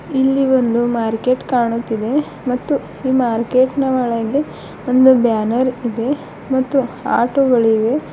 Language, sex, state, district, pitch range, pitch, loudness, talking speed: Kannada, female, Karnataka, Bidar, 235-265 Hz, 250 Hz, -16 LUFS, 105 wpm